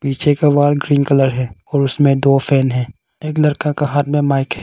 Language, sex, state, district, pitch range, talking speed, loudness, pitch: Hindi, male, Arunachal Pradesh, Longding, 135-145 Hz, 235 wpm, -15 LUFS, 140 Hz